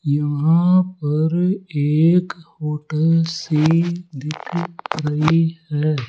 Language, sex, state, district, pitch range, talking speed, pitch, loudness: Hindi, male, Rajasthan, Jaipur, 150-170 Hz, 80 wpm, 160 Hz, -19 LUFS